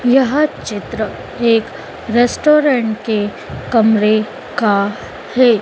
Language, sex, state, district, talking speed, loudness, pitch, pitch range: Hindi, female, Madhya Pradesh, Dhar, 85 wpm, -15 LUFS, 230 Hz, 215-250 Hz